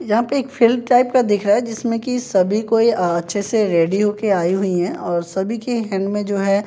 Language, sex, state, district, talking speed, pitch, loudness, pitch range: Hindi, male, Bihar, Katihar, 260 wpm, 205 Hz, -18 LUFS, 195-235 Hz